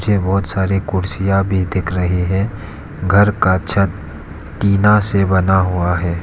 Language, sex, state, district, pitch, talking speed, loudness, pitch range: Hindi, male, Arunachal Pradesh, Lower Dibang Valley, 95 Hz, 155 wpm, -16 LUFS, 90-100 Hz